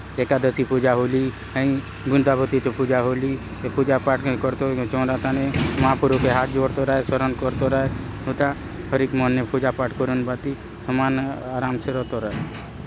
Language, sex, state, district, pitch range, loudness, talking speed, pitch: Halbi, male, Chhattisgarh, Bastar, 125-135 Hz, -22 LUFS, 170 wpm, 130 Hz